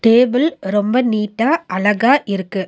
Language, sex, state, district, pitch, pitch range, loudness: Tamil, female, Tamil Nadu, Nilgiris, 225 Hz, 205-250 Hz, -16 LUFS